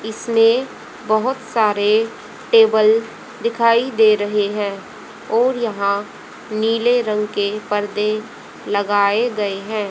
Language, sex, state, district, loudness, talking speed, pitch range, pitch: Hindi, female, Haryana, Rohtak, -18 LUFS, 105 wpm, 205-230 Hz, 215 Hz